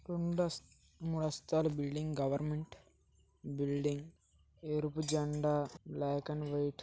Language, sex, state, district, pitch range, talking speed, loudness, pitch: Telugu, male, Andhra Pradesh, Srikakulam, 140-155 Hz, 105 wpm, -37 LUFS, 150 Hz